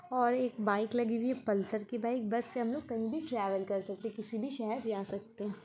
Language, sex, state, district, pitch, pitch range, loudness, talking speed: Hindi, female, Bihar, Muzaffarpur, 225 Hz, 210-245 Hz, -35 LUFS, 275 wpm